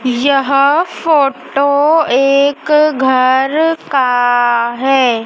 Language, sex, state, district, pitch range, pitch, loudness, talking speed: Hindi, male, Madhya Pradesh, Dhar, 255-290 Hz, 275 Hz, -12 LUFS, 70 wpm